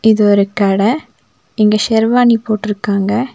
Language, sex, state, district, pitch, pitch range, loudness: Tamil, female, Tamil Nadu, Nilgiris, 215 Hz, 205-230 Hz, -13 LUFS